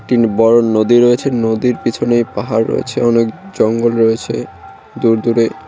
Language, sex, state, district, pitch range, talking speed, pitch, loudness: Bengali, male, West Bengal, Cooch Behar, 110-120 Hz, 115 wpm, 115 Hz, -14 LUFS